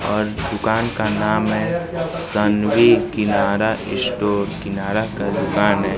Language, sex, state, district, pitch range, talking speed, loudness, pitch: Hindi, male, Bihar, Kaimur, 105-110 Hz, 120 wpm, -17 LUFS, 105 Hz